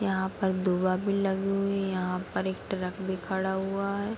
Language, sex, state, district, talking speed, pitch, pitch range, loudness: Hindi, female, Bihar, Kishanganj, 215 wpm, 190 Hz, 185-195 Hz, -29 LUFS